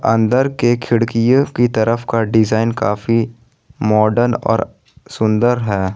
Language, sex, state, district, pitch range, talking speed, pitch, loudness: Hindi, male, Jharkhand, Ranchi, 110-120 Hz, 120 wpm, 115 Hz, -16 LUFS